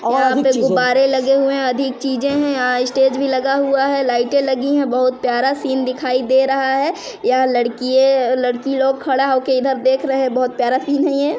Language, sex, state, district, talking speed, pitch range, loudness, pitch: Hindi, female, Chhattisgarh, Sarguja, 215 wpm, 255-275 Hz, -16 LUFS, 265 Hz